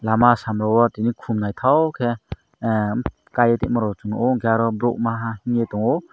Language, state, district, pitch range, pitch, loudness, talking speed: Kokborok, Tripura, Dhalai, 110-120 Hz, 115 Hz, -21 LUFS, 175 wpm